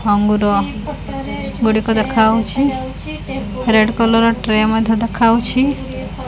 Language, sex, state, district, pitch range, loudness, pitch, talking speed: Odia, female, Odisha, Khordha, 215-230 Hz, -16 LUFS, 225 Hz, 75 wpm